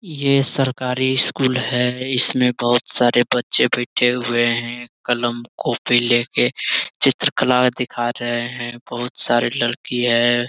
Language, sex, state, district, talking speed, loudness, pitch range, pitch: Hindi, male, Bihar, Jamui, 120 wpm, -18 LUFS, 120-125 Hz, 120 Hz